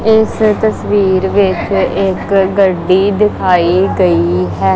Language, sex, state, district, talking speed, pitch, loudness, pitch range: Punjabi, female, Punjab, Kapurthala, 100 wpm, 190 Hz, -12 LUFS, 180-205 Hz